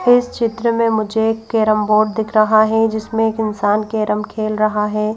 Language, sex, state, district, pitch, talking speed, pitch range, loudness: Hindi, female, Madhya Pradesh, Bhopal, 220 Hz, 200 wpm, 215-225 Hz, -16 LUFS